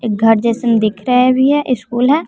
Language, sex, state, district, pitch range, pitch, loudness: Hindi, female, Bihar, West Champaran, 225-255 Hz, 245 Hz, -13 LUFS